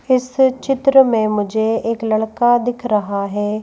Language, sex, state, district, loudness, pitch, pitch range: Hindi, female, Madhya Pradesh, Bhopal, -16 LUFS, 230 Hz, 215-255 Hz